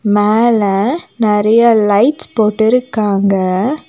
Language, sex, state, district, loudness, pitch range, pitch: Tamil, female, Tamil Nadu, Nilgiris, -12 LUFS, 205-235 Hz, 215 Hz